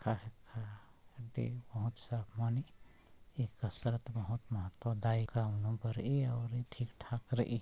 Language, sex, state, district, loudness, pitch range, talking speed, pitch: Sadri, male, Chhattisgarh, Jashpur, -39 LUFS, 110-120 Hz, 85 wpm, 115 Hz